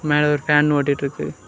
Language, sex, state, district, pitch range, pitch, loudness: Tamil, male, Tamil Nadu, Kanyakumari, 140-150 Hz, 150 Hz, -19 LUFS